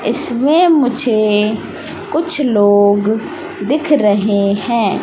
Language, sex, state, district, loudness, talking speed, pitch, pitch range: Hindi, female, Madhya Pradesh, Katni, -14 LUFS, 85 wpm, 230 Hz, 205-295 Hz